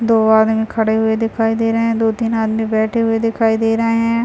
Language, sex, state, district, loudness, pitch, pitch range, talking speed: Hindi, male, Bihar, Muzaffarpur, -16 LUFS, 225 Hz, 220-230 Hz, 225 wpm